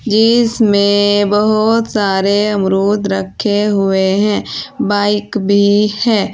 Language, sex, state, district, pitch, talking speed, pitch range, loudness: Hindi, female, Uttar Pradesh, Saharanpur, 205 Hz, 95 wpm, 200-210 Hz, -13 LUFS